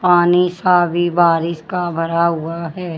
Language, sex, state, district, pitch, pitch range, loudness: Hindi, female, Haryana, Jhajjar, 175 Hz, 170-180 Hz, -16 LUFS